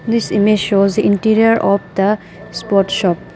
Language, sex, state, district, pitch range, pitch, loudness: English, female, Arunachal Pradesh, Papum Pare, 195-215 Hz, 200 Hz, -14 LUFS